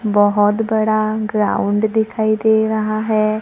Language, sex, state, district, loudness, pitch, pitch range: Hindi, female, Maharashtra, Gondia, -16 LUFS, 215 Hz, 215-220 Hz